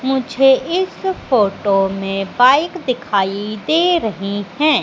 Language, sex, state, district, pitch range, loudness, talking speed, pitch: Hindi, female, Madhya Pradesh, Katni, 200-305 Hz, -16 LUFS, 110 wpm, 245 Hz